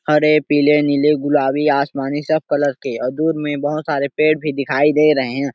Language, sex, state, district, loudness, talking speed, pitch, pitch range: Hindi, male, Chhattisgarh, Sarguja, -17 LUFS, 205 wpm, 145 Hz, 140-150 Hz